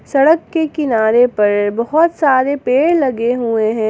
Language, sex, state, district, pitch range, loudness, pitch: Hindi, female, Jharkhand, Garhwa, 225-300 Hz, -14 LUFS, 255 Hz